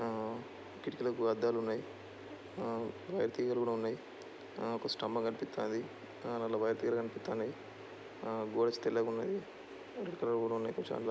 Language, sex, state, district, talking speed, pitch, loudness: Telugu, male, Andhra Pradesh, Srikakulam, 135 wpm, 115 Hz, -37 LUFS